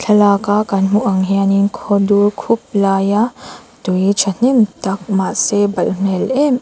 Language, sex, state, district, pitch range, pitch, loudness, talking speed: Mizo, female, Mizoram, Aizawl, 195-215 Hz, 200 Hz, -15 LUFS, 165 wpm